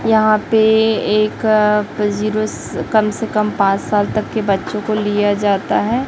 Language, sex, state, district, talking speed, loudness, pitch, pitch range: Hindi, female, Chhattisgarh, Raipur, 170 wpm, -16 LUFS, 215 Hz, 205-220 Hz